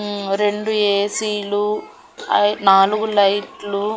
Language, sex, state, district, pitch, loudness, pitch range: Telugu, female, Andhra Pradesh, Annamaya, 205 Hz, -18 LUFS, 200-210 Hz